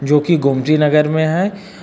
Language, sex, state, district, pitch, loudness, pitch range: Hindi, male, Uttar Pradesh, Lucknow, 155 Hz, -15 LUFS, 150-175 Hz